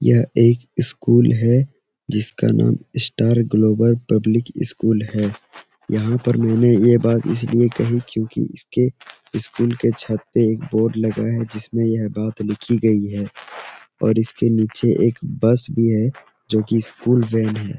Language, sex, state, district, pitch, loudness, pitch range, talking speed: Hindi, male, Bihar, Araria, 115 Hz, -18 LUFS, 110-120 Hz, 155 wpm